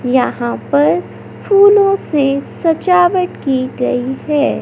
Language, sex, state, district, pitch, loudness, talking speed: Hindi, male, Madhya Pradesh, Katni, 275 Hz, -14 LUFS, 105 wpm